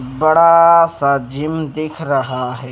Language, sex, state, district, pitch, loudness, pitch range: Hindi, male, Bihar, Patna, 150 Hz, -14 LUFS, 130-160 Hz